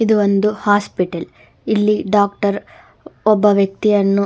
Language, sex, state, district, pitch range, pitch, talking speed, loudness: Kannada, female, Karnataka, Dakshina Kannada, 200-210 Hz, 205 Hz, 100 wpm, -16 LUFS